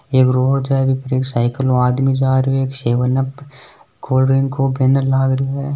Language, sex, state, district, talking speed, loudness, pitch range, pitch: Hindi, male, Rajasthan, Nagaur, 220 wpm, -16 LUFS, 130-135 Hz, 130 Hz